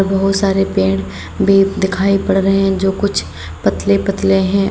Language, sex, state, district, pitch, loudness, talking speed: Hindi, female, Uttar Pradesh, Saharanpur, 195 Hz, -15 LUFS, 165 wpm